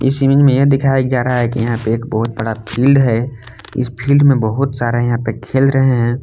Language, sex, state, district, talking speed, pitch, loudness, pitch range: Hindi, male, Jharkhand, Palamu, 250 wpm, 125 Hz, -14 LUFS, 115-135 Hz